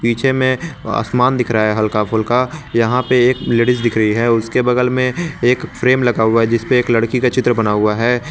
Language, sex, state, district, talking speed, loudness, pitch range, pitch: Hindi, male, Jharkhand, Garhwa, 225 wpm, -15 LUFS, 115-125 Hz, 125 Hz